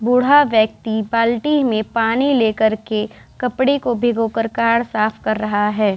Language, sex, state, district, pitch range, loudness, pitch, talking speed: Hindi, female, Bihar, Vaishali, 215-245 Hz, -17 LUFS, 225 Hz, 170 wpm